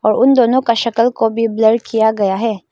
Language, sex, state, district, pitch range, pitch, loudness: Hindi, female, Arunachal Pradesh, Lower Dibang Valley, 220-235 Hz, 230 Hz, -14 LUFS